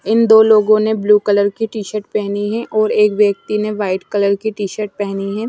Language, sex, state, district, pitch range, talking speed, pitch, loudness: Hindi, female, Himachal Pradesh, Shimla, 200-215 Hz, 220 wpm, 210 Hz, -15 LUFS